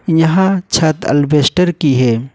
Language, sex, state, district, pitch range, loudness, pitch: Hindi, male, Jharkhand, Ranchi, 140-175 Hz, -13 LUFS, 160 Hz